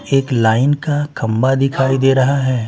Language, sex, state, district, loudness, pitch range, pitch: Hindi, male, Bihar, Patna, -15 LUFS, 130-140 Hz, 135 Hz